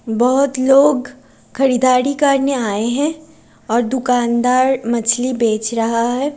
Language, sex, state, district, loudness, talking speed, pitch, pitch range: Hindi, female, Chhattisgarh, Raigarh, -16 LUFS, 115 wpm, 255 Hz, 235-275 Hz